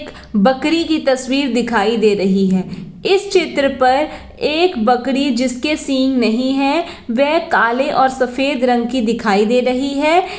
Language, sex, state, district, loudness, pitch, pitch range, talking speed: Hindi, female, Bihar, Jahanabad, -15 LUFS, 260 Hz, 235-295 Hz, 155 wpm